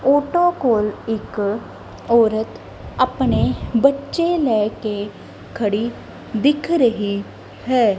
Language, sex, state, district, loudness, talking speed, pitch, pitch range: Punjabi, female, Punjab, Kapurthala, -19 LUFS, 90 wpm, 230 Hz, 210-280 Hz